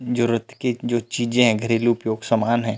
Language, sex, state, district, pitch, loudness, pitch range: Chhattisgarhi, male, Chhattisgarh, Rajnandgaon, 120 Hz, -21 LUFS, 115-120 Hz